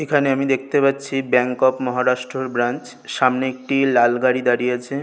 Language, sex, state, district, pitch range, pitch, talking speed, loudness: Bengali, male, West Bengal, North 24 Parganas, 125-135 Hz, 130 Hz, 180 wpm, -19 LUFS